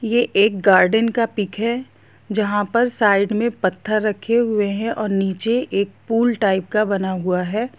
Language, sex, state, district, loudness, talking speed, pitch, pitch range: Hindi, female, Jharkhand, Jamtara, -19 LUFS, 185 wpm, 215 Hz, 200-230 Hz